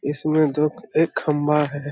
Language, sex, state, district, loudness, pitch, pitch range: Hindi, male, Jharkhand, Sahebganj, -21 LUFS, 150 Hz, 145-155 Hz